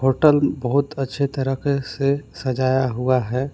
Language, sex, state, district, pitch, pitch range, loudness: Hindi, male, Jharkhand, Palamu, 135 Hz, 130-140 Hz, -21 LUFS